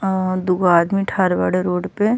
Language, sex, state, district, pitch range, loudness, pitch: Bhojpuri, female, Uttar Pradesh, Ghazipur, 180-195 Hz, -18 LUFS, 185 Hz